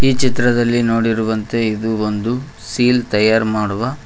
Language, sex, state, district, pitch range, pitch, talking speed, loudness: Kannada, male, Karnataka, Koppal, 110-120 Hz, 115 Hz, 105 wpm, -17 LUFS